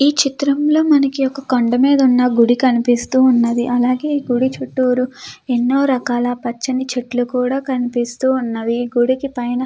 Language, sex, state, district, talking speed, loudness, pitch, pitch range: Telugu, female, Andhra Pradesh, Krishna, 155 wpm, -16 LUFS, 255 Hz, 245-270 Hz